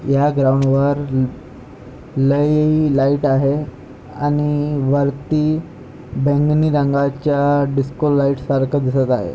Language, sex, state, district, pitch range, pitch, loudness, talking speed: Marathi, male, Maharashtra, Pune, 135-145 Hz, 140 Hz, -17 LUFS, 95 wpm